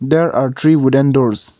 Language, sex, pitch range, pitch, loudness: English, male, 130-155 Hz, 135 Hz, -13 LUFS